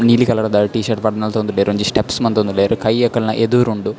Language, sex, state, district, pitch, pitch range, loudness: Tulu, male, Karnataka, Dakshina Kannada, 110 Hz, 105-115 Hz, -16 LUFS